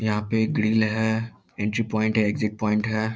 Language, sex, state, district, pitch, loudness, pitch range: Hindi, male, Bihar, Lakhisarai, 110 Hz, -24 LUFS, 105-110 Hz